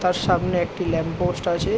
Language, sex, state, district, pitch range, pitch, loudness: Bengali, male, West Bengal, Jhargram, 170-180 Hz, 175 Hz, -23 LUFS